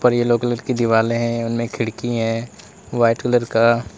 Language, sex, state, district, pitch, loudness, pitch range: Hindi, male, Uttar Pradesh, Lalitpur, 115 Hz, -19 LUFS, 115-120 Hz